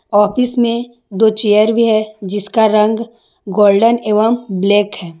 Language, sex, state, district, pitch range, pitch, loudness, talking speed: Hindi, female, Jharkhand, Garhwa, 205-230 Hz, 215 Hz, -14 LUFS, 140 wpm